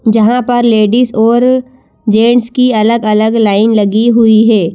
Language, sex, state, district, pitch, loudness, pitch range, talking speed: Hindi, female, Madhya Pradesh, Bhopal, 225 Hz, -9 LUFS, 220-240 Hz, 150 wpm